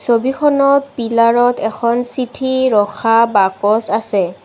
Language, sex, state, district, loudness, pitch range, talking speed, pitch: Assamese, female, Assam, Kamrup Metropolitan, -14 LUFS, 215-260 Hz, 110 wpm, 230 Hz